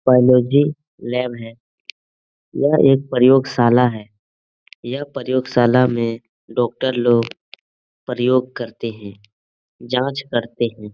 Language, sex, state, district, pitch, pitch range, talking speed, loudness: Hindi, male, Bihar, Jahanabad, 120 Hz, 115-130 Hz, 100 wpm, -18 LUFS